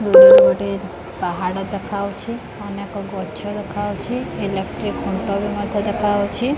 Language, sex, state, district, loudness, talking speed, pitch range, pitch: Odia, female, Odisha, Khordha, -18 LUFS, 100 wpm, 195-210 Hz, 205 Hz